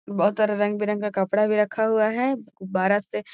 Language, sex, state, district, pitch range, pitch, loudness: Magahi, female, Bihar, Gaya, 200-215 Hz, 210 Hz, -23 LUFS